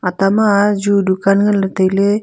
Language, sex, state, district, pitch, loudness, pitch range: Wancho, female, Arunachal Pradesh, Longding, 200 Hz, -14 LUFS, 190-205 Hz